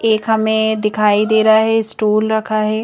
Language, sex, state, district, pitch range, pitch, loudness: Hindi, female, Madhya Pradesh, Bhopal, 215-220 Hz, 220 Hz, -14 LUFS